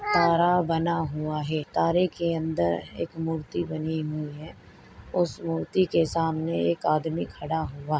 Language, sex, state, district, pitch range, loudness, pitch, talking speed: Hindi, female, Maharashtra, Chandrapur, 150-170 Hz, -27 LUFS, 160 Hz, 160 wpm